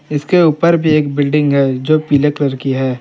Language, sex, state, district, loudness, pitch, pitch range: Hindi, male, Jharkhand, Palamu, -13 LUFS, 145 Hz, 140-155 Hz